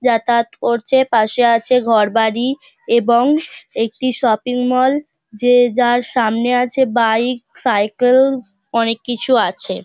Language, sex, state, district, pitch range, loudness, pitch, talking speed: Bengali, female, West Bengal, Dakshin Dinajpur, 230-255 Hz, -15 LUFS, 240 Hz, 120 wpm